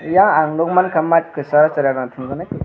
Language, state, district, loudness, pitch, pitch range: Kokborok, Tripura, West Tripura, -16 LUFS, 155 Hz, 145-165 Hz